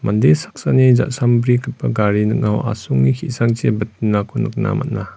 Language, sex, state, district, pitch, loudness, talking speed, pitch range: Garo, male, Meghalaya, West Garo Hills, 110 Hz, -17 LUFS, 115 wpm, 105-125 Hz